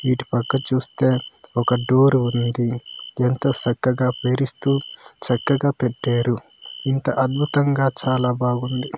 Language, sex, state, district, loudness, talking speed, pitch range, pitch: Telugu, male, Andhra Pradesh, Manyam, -19 LUFS, 95 wpm, 125-135 Hz, 130 Hz